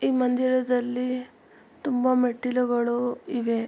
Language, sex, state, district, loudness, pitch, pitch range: Kannada, female, Karnataka, Mysore, -25 LUFS, 250 Hz, 240-255 Hz